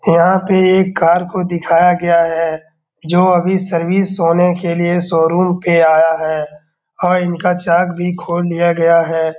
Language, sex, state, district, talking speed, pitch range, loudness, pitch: Hindi, male, Bihar, Darbhanga, 165 wpm, 165-180 Hz, -14 LUFS, 175 Hz